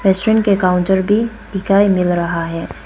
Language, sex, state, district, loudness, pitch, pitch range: Hindi, female, Arunachal Pradesh, Papum Pare, -15 LUFS, 190 Hz, 180-205 Hz